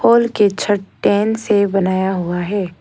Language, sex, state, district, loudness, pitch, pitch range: Hindi, female, Arunachal Pradesh, Lower Dibang Valley, -16 LUFS, 200 Hz, 190-215 Hz